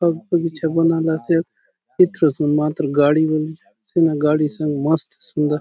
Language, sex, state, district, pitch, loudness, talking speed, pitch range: Halbi, male, Chhattisgarh, Bastar, 160 Hz, -19 LUFS, 160 wpm, 150-165 Hz